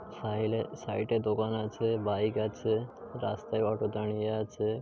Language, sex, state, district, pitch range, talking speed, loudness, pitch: Bengali, male, West Bengal, Paschim Medinipur, 105-110 Hz, 125 wpm, -32 LUFS, 110 Hz